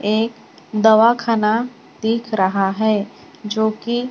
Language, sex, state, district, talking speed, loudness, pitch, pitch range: Hindi, female, Maharashtra, Gondia, 115 wpm, -18 LUFS, 220 Hz, 215-235 Hz